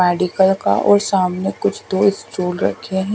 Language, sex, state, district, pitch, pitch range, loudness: Hindi, female, Odisha, Khordha, 190 Hz, 180-200 Hz, -17 LUFS